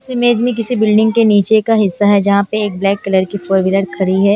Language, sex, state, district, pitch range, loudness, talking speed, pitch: Hindi, female, Punjab, Kapurthala, 195-220 Hz, -13 LUFS, 275 wpm, 205 Hz